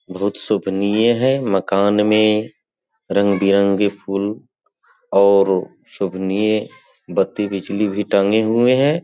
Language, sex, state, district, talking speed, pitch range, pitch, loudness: Hindi, male, Bihar, Sitamarhi, 100 wpm, 100-110 Hz, 100 Hz, -17 LUFS